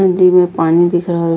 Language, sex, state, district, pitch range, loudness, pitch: Angika, female, Bihar, Bhagalpur, 165-180 Hz, -12 LUFS, 175 Hz